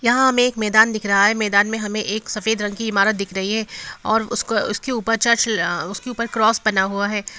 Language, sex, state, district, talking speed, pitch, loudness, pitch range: Hindi, female, Bihar, Gopalganj, 235 wpm, 220 Hz, -19 LUFS, 205-225 Hz